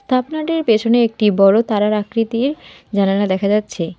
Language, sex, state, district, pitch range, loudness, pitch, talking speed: Bengali, female, West Bengal, Alipurduar, 200-240 Hz, -16 LUFS, 215 Hz, 135 wpm